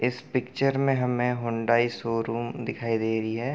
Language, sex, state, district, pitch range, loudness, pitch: Hindi, male, Bihar, Gopalganj, 115-125 Hz, -27 LUFS, 120 Hz